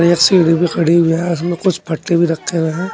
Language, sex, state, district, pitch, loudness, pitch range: Hindi, male, Uttar Pradesh, Saharanpur, 170 Hz, -14 LUFS, 165-175 Hz